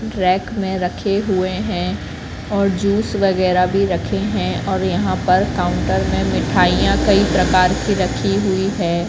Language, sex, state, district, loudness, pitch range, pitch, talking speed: Hindi, female, Madhya Pradesh, Katni, -17 LUFS, 185-200 Hz, 195 Hz, 150 wpm